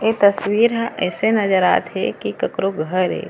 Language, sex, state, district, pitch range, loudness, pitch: Chhattisgarhi, female, Chhattisgarh, Raigarh, 185-220 Hz, -18 LUFS, 200 Hz